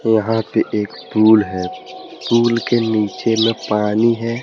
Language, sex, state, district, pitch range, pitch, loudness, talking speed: Hindi, male, Jharkhand, Deoghar, 105-115 Hz, 110 Hz, -17 LUFS, 150 wpm